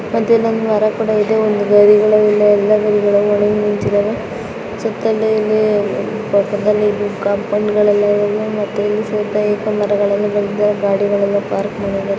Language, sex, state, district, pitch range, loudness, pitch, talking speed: Kannada, female, Karnataka, Raichur, 205-215 Hz, -15 LUFS, 210 Hz, 45 wpm